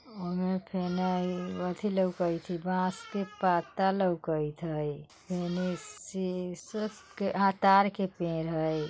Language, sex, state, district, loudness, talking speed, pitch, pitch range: Bajjika, female, Bihar, Vaishali, -31 LUFS, 100 wpm, 180 Hz, 170-190 Hz